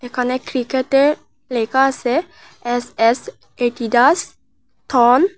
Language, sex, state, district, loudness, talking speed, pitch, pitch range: Bengali, female, Tripura, West Tripura, -17 LUFS, 100 wpm, 255 Hz, 240-275 Hz